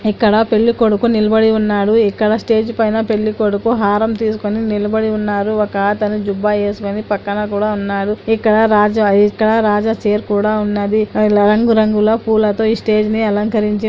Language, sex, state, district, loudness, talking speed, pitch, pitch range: Telugu, female, Andhra Pradesh, Anantapur, -14 LUFS, 145 wpm, 215 Hz, 210-220 Hz